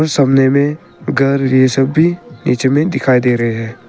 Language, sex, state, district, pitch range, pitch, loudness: Hindi, male, Arunachal Pradesh, Papum Pare, 125-145 Hz, 135 Hz, -13 LUFS